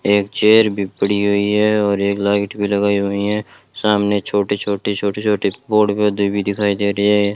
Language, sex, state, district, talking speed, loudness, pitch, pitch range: Hindi, male, Rajasthan, Bikaner, 205 wpm, -17 LUFS, 100 Hz, 100-105 Hz